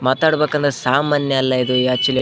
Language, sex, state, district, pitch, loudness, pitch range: Kannada, male, Karnataka, Bellary, 130 Hz, -17 LUFS, 125-145 Hz